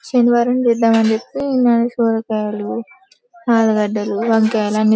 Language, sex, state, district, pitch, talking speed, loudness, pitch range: Telugu, female, Telangana, Karimnagar, 230 Hz, 85 wpm, -16 LUFS, 220-245 Hz